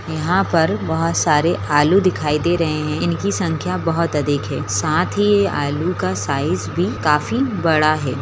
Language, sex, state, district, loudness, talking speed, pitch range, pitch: Hindi, female, Bihar, Begusarai, -18 LUFS, 190 wpm, 120-165 Hz, 150 Hz